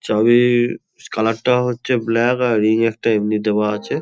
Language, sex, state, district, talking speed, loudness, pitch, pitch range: Bengali, male, West Bengal, Kolkata, 165 wpm, -17 LUFS, 115 Hz, 110-120 Hz